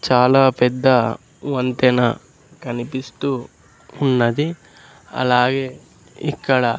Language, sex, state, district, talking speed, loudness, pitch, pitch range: Telugu, male, Andhra Pradesh, Sri Satya Sai, 60 wpm, -18 LUFS, 130 Hz, 125-135 Hz